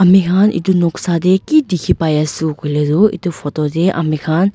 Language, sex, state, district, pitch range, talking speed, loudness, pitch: Nagamese, female, Nagaland, Dimapur, 155-190 Hz, 160 wpm, -15 LUFS, 175 Hz